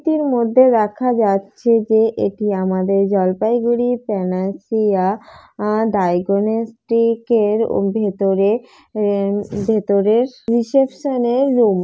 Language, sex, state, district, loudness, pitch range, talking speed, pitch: Bengali, female, West Bengal, Jalpaiguri, -17 LUFS, 200-235 Hz, 85 wpm, 220 Hz